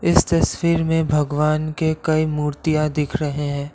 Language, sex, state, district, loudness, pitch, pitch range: Hindi, male, Assam, Kamrup Metropolitan, -20 LUFS, 155 Hz, 150-160 Hz